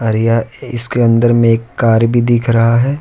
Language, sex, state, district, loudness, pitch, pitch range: Hindi, male, Jharkhand, Deoghar, -12 LUFS, 115 Hz, 115-120 Hz